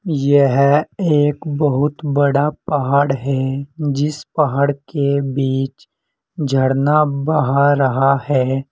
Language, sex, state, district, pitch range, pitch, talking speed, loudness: Hindi, male, Uttar Pradesh, Saharanpur, 135-150 Hz, 140 Hz, 95 wpm, -17 LUFS